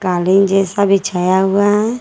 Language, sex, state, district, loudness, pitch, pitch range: Hindi, female, Jharkhand, Garhwa, -14 LUFS, 195 Hz, 185-200 Hz